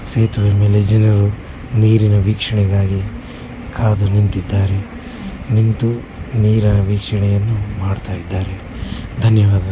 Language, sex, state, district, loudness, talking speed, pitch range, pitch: Kannada, male, Karnataka, Bellary, -16 LUFS, 80 wpm, 100-110 Hz, 105 Hz